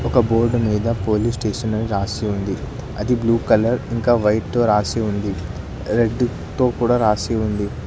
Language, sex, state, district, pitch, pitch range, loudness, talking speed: Telugu, male, Telangana, Hyderabad, 110 Hz, 105-120 Hz, -20 LUFS, 160 wpm